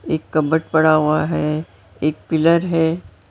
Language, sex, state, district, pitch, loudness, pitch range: Hindi, female, Maharashtra, Mumbai Suburban, 155 Hz, -18 LUFS, 150-160 Hz